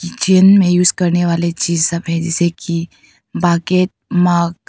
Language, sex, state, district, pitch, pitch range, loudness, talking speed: Hindi, female, Arunachal Pradesh, Papum Pare, 175 Hz, 170-180 Hz, -14 LUFS, 165 wpm